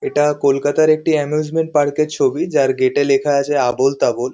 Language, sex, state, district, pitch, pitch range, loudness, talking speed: Bengali, male, West Bengal, Kolkata, 145 Hz, 135-155 Hz, -16 LUFS, 180 wpm